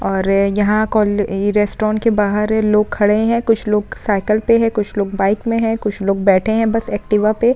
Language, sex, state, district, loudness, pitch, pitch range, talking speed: Hindi, female, Uttar Pradesh, Muzaffarnagar, -16 LUFS, 210 Hz, 205-225 Hz, 205 wpm